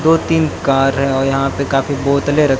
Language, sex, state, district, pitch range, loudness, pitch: Hindi, male, Haryana, Jhajjar, 135-150 Hz, -15 LUFS, 140 Hz